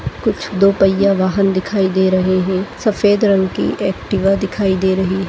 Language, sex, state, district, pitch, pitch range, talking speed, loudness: Hindi, female, Chhattisgarh, Sarguja, 195 Hz, 190-200 Hz, 180 wpm, -15 LUFS